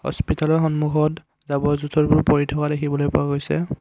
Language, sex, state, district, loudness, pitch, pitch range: Assamese, male, Assam, Kamrup Metropolitan, -21 LUFS, 150 Hz, 145-155 Hz